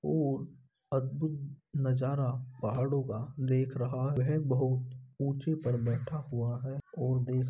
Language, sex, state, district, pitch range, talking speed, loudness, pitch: Hindi, male, Uttar Pradesh, Muzaffarnagar, 130-140 Hz, 135 wpm, -33 LUFS, 130 Hz